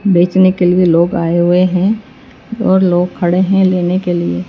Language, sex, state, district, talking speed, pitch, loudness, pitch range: Hindi, female, Chhattisgarh, Raipur, 185 wpm, 180 Hz, -12 LUFS, 175-190 Hz